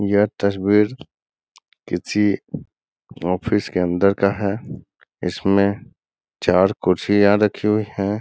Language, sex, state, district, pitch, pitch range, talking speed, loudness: Hindi, male, Bihar, Gaya, 100 Hz, 100-105 Hz, 100 wpm, -19 LUFS